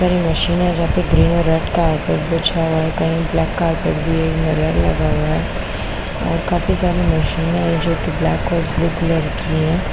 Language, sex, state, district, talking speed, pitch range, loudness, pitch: Hindi, female, Bihar, Kishanganj, 205 wpm, 160-170 Hz, -18 LUFS, 165 Hz